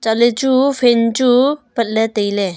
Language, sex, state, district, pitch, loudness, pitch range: Wancho, female, Arunachal Pradesh, Longding, 235 Hz, -15 LUFS, 220-260 Hz